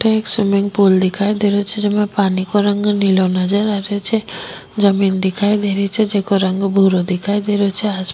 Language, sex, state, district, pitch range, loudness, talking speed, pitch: Rajasthani, female, Rajasthan, Nagaur, 195-205 Hz, -16 LUFS, 230 wpm, 200 Hz